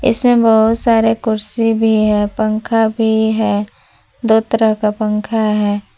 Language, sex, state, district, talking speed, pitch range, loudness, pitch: Hindi, female, Jharkhand, Palamu, 140 wpm, 215-225 Hz, -14 LUFS, 220 Hz